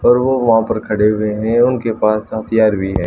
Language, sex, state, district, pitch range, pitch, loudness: Hindi, female, Haryana, Charkhi Dadri, 105-115 Hz, 110 Hz, -15 LUFS